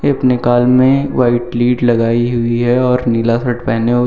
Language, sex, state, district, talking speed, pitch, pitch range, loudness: Hindi, male, Uttar Pradesh, Lucknow, 190 wpm, 120 Hz, 120-125 Hz, -13 LUFS